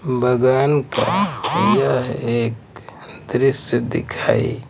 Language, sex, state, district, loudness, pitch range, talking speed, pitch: Hindi, male, Maharashtra, Mumbai Suburban, -19 LUFS, 120-130 Hz, 90 wpm, 125 Hz